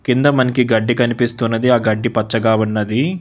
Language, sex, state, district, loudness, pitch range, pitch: Telugu, male, Telangana, Hyderabad, -16 LUFS, 110-125 Hz, 120 Hz